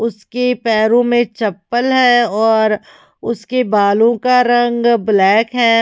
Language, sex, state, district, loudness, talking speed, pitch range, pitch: Hindi, female, Himachal Pradesh, Shimla, -14 LUFS, 125 wpm, 220-240 Hz, 235 Hz